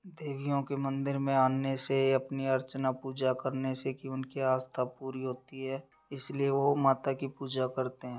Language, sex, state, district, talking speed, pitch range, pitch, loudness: Hindi, female, Bihar, Darbhanga, 175 wpm, 130-135 Hz, 135 Hz, -32 LUFS